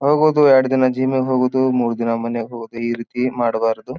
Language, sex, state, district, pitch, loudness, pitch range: Kannada, male, Karnataka, Bijapur, 125 Hz, -18 LUFS, 115-130 Hz